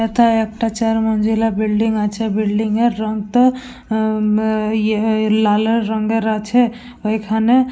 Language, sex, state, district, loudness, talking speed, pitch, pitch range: Bengali, female, West Bengal, Purulia, -17 LUFS, 125 wpm, 220 Hz, 215-225 Hz